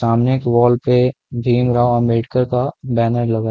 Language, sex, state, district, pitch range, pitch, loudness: Hindi, male, Chhattisgarh, Rajnandgaon, 120-125 Hz, 120 Hz, -16 LUFS